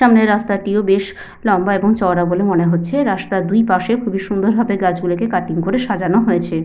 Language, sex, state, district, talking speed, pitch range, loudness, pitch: Bengali, female, West Bengal, Paschim Medinipur, 190 wpm, 180-220 Hz, -16 LUFS, 200 Hz